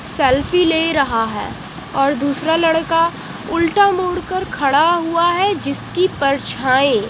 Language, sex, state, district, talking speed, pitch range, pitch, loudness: Hindi, female, Haryana, Jhajjar, 125 wpm, 275-350 Hz, 325 Hz, -16 LUFS